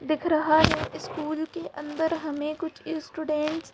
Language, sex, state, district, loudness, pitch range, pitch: Hindi, female, Madhya Pradesh, Bhopal, -27 LUFS, 305-325 Hz, 310 Hz